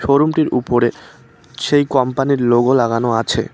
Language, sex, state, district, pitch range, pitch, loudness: Bengali, male, West Bengal, Cooch Behar, 120-140 Hz, 125 Hz, -16 LUFS